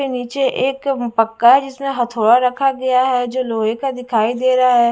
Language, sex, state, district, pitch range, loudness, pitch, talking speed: Hindi, female, Haryana, Jhajjar, 240-265 Hz, -16 LUFS, 250 Hz, 195 wpm